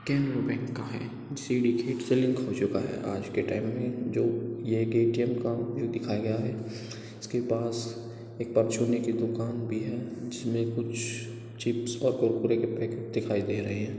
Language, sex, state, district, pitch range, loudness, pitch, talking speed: Hindi, male, Bihar, Purnia, 115-120 Hz, -30 LUFS, 115 Hz, 170 wpm